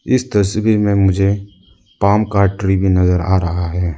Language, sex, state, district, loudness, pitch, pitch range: Hindi, male, Arunachal Pradesh, Lower Dibang Valley, -15 LUFS, 95 Hz, 95-100 Hz